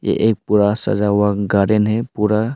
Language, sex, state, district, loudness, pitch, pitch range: Hindi, male, Arunachal Pradesh, Longding, -17 LUFS, 105 Hz, 105-110 Hz